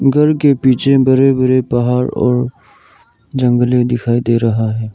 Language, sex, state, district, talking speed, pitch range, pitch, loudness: Hindi, male, Arunachal Pradesh, Lower Dibang Valley, 145 wpm, 120-130 Hz, 125 Hz, -13 LUFS